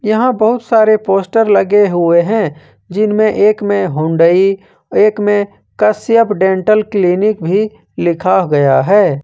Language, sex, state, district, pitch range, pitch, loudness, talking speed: Hindi, male, Jharkhand, Ranchi, 175-215 Hz, 200 Hz, -12 LUFS, 130 wpm